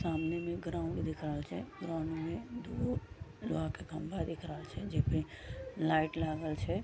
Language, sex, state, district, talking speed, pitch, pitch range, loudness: Maithili, female, Bihar, Vaishali, 165 wpm, 160 Hz, 155-165 Hz, -38 LUFS